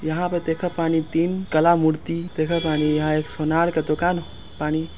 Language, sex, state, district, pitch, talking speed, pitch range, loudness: Angika, male, Bihar, Samastipur, 160 Hz, 180 wpm, 155-170 Hz, -22 LUFS